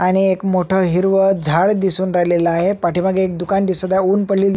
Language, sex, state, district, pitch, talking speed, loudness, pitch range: Marathi, male, Maharashtra, Sindhudurg, 190 Hz, 195 wpm, -16 LUFS, 180-195 Hz